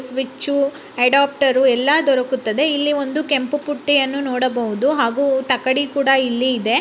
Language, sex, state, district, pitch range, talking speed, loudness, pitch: Kannada, male, Karnataka, Bellary, 255-285 Hz, 125 wpm, -17 LUFS, 270 Hz